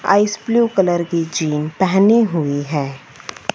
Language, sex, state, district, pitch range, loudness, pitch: Hindi, female, Punjab, Fazilka, 150-205 Hz, -17 LUFS, 175 Hz